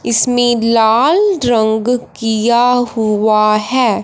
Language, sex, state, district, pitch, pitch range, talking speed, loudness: Hindi, male, Punjab, Fazilka, 235 Hz, 220-245 Hz, 90 wpm, -13 LUFS